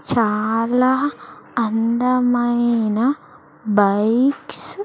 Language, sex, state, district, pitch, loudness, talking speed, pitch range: Telugu, female, Andhra Pradesh, Sri Satya Sai, 235 Hz, -19 LUFS, 50 wpm, 220-250 Hz